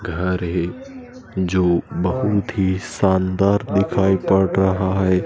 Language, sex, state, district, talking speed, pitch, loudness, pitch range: Hindi, male, Madhya Pradesh, Dhar, 115 wpm, 95 Hz, -19 LUFS, 95-100 Hz